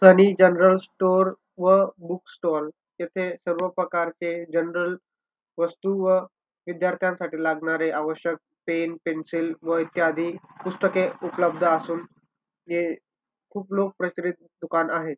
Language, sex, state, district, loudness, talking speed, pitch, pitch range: Marathi, male, Maharashtra, Dhule, -24 LUFS, 105 wpm, 175 Hz, 165-185 Hz